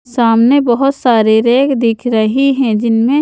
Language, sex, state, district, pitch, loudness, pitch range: Hindi, female, Haryana, Charkhi Dadri, 240 Hz, -12 LUFS, 225-270 Hz